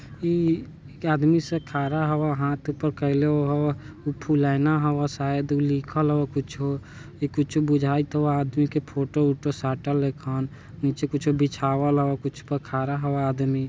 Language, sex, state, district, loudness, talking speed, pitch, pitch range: Bajjika, male, Bihar, Vaishali, -25 LUFS, 160 wpm, 145 Hz, 140-150 Hz